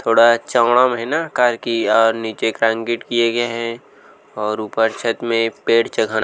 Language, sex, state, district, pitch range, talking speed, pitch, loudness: Chhattisgarhi, male, Chhattisgarh, Rajnandgaon, 115-120 Hz, 190 wpm, 115 Hz, -17 LUFS